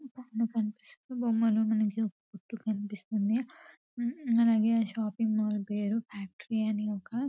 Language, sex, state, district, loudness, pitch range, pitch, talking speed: Telugu, female, Telangana, Nalgonda, -31 LUFS, 210-230 Hz, 220 Hz, 115 wpm